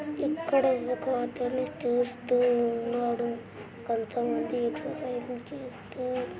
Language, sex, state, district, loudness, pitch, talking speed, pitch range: Telugu, female, Andhra Pradesh, Anantapur, -30 LUFS, 245 Hz, 85 wpm, 240-260 Hz